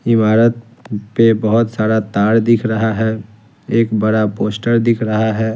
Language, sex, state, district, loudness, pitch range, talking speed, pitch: Hindi, male, Bihar, Patna, -15 LUFS, 110-115 Hz, 150 wpm, 110 Hz